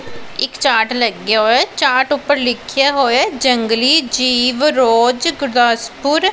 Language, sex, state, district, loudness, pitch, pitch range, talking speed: Punjabi, female, Punjab, Pathankot, -14 LUFS, 250 Hz, 235-280 Hz, 125 wpm